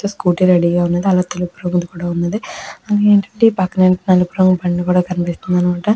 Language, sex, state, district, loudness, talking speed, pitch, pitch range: Telugu, female, Andhra Pradesh, Krishna, -15 LUFS, 200 wpm, 180 Hz, 175-190 Hz